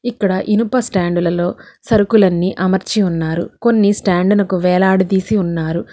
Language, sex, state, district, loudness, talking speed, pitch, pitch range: Telugu, female, Telangana, Hyderabad, -15 LUFS, 110 wpm, 190 Hz, 180-210 Hz